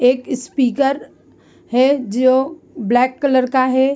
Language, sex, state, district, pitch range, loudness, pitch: Hindi, female, Bihar, East Champaran, 250-270 Hz, -17 LUFS, 260 Hz